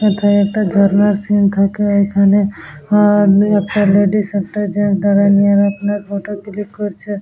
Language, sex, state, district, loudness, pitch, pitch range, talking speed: Bengali, female, West Bengal, Dakshin Dinajpur, -14 LUFS, 205 Hz, 200-205 Hz, 160 wpm